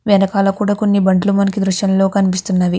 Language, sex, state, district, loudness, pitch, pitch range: Telugu, female, Andhra Pradesh, Guntur, -15 LUFS, 195 Hz, 190-200 Hz